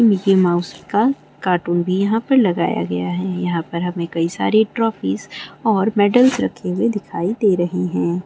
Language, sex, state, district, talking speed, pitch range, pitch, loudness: Maithili, female, Bihar, Saharsa, 175 wpm, 170-215 Hz, 185 Hz, -18 LUFS